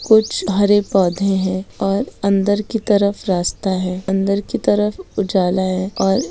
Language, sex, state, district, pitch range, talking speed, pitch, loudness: Hindi, female, Bihar, Gaya, 190-205 Hz, 135 wpm, 195 Hz, -18 LUFS